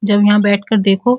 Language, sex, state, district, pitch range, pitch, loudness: Hindi, female, Uttar Pradesh, Muzaffarnagar, 200-210 Hz, 205 Hz, -13 LUFS